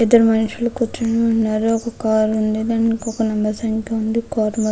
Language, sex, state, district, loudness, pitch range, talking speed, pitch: Telugu, female, Andhra Pradesh, Krishna, -19 LUFS, 220-230 Hz, 125 wpm, 225 Hz